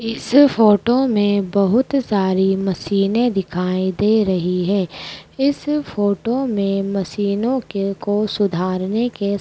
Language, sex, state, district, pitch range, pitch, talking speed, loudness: Hindi, female, Madhya Pradesh, Dhar, 195-230 Hz, 205 Hz, 120 wpm, -18 LUFS